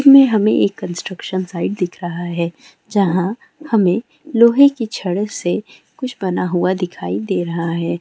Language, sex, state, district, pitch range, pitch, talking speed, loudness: Hindi, female, West Bengal, Jalpaiguri, 175-230 Hz, 190 Hz, 155 wpm, -18 LUFS